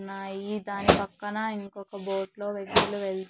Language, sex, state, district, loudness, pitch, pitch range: Telugu, female, Andhra Pradesh, Sri Satya Sai, -26 LUFS, 200 Hz, 195-205 Hz